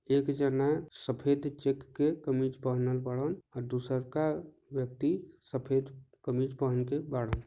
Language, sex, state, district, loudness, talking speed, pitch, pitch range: Bhojpuri, male, Jharkhand, Sahebganj, -33 LUFS, 135 wpm, 135 Hz, 130-145 Hz